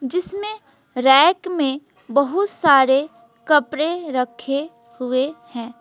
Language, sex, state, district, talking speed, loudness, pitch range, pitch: Hindi, female, West Bengal, Alipurduar, 95 wpm, -19 LUFS, 250-320 Hz, 275 Hz